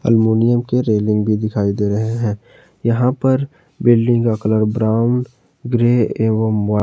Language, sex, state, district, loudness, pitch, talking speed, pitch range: Hindi, male, Jharkhand, Palamu, -17 LUFS, 115 Hz, 150 wpm, 110-120 Hz